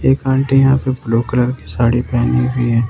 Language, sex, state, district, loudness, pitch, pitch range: Hindi, male, Jharkhand, Ranchi, -15 LUFS, 125 Hz, 120-130 Hz